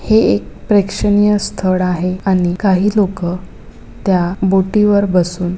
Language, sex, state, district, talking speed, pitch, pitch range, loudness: Marathi, female, Maharashtra, Pune, 130 wpm, 190 Hz, 180-205 Hz, -14 LUFS